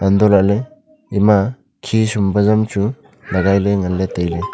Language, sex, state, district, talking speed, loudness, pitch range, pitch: Wancho, male, Arunachal Pradesh, Longding, 95 wpm, -16 LUFS, 95-110 Hz, 100 Hz